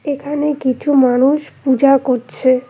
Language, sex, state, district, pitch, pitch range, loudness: Bengali, female, West Bengal, Cooch Behar, 270 Hz, 255-290 Hz, -15 LUFS